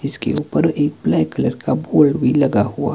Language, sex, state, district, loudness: Hindi, male, Himachal Pradesh, Shimla, -17 LUFS